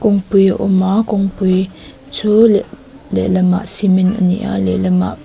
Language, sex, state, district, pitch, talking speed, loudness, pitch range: Mizo, female, Mizoram, Aizawl, 190 Hz, 160 wpm, -14 LUFS, 180-205 Hz